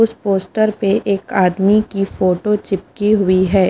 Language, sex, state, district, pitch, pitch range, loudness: Hindi, female, Punjab, Fazilka, 195 Hz, 190-210 Hz, -16 LUFS